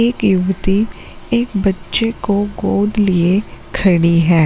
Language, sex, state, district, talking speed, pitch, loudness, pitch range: Hindi, female, Uttarakhand, Uttarkashi, 120 wpm, 200 Hz, -16 LUFS, 180-215 Hz